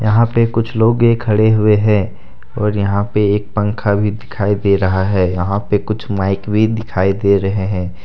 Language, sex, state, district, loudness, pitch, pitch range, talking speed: Hindi, male, Jharkhand, Deoghar, -15 LUFS, 105 Hz, 100-110 Hz, 185 wpm